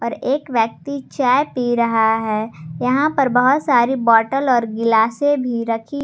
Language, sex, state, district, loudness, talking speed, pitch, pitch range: Hindi, female, Jharkhand, Garhwa, -17 LUFS, 160 wpm, 245 Hz, 225-275 Hz